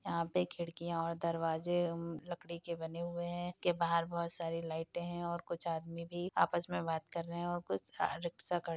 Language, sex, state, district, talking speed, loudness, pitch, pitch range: Hindi, female, Bihar, Madhepura, 205 wpm, -38 LUFS, 170 Hz, 165-175 Hz